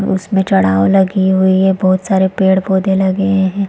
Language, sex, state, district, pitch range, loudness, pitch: Hindi, female, Chhattisgarh, Rajnandgaon, 190-195 Hz, -13 LUFS, 190 Hz